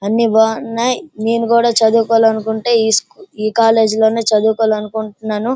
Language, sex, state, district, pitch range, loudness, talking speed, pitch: Telugu, female, Andhra Pradesh, Srikakulam, 220-230 Hz, -14 LUFS, 95 wpm, 225 Hz